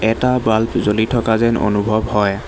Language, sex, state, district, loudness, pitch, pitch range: Assamese, male, Assam, Hailakandi, -16 LUFS, 110 Hz, 105-115 Hz